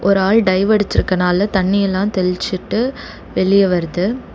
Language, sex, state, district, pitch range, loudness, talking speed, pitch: Tamil, female, Tamil Nadu, Chennai, 185-205 Hz, -16 LUFS, 110 wpm, 190 Hz